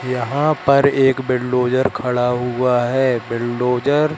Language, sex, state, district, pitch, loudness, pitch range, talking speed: Hindi, male, Madhya Pradesh, Katni, 125 Hz, -17 LUFS, 125-135 Hz, 130 wpm